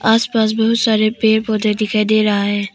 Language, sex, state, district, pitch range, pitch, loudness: Hindi, female, Arunachal Pradesh, Papum Pare, 215-220 Hz, 215 Hz, -15 LUFS